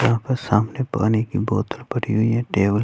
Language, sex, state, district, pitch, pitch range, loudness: Hindi, male, Chhattisgarh, Raipur, 110 Hz, 105-120 Hz, -21 LUFS